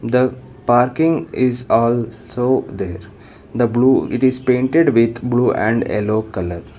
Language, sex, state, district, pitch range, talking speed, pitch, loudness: English, male, Karnataka, Bangalore, 110-130 Hz, 130 wpm, 120 Hz, -17 LUFS